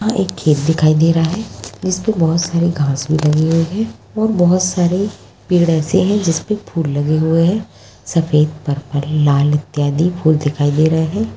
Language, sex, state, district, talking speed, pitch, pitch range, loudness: Hindi, female, Bihar, Bhagalpur, 180 wpm, 165 Hz, 150-185 Hz, -16 LUFS